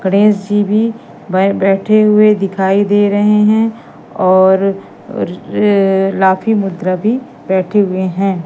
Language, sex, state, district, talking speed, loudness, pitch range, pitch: Hindi, female, Madhya Pradesh, Katni, 130 wpm, -13 LUFS, 190-210 Hz, 200 Hz